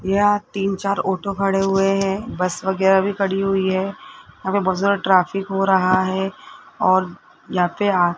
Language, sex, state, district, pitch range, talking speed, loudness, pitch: Hindi, male, Rajasthan, Jaipur, 185-195 Hz, 175 wpm, -20 LUFS, 195 Hz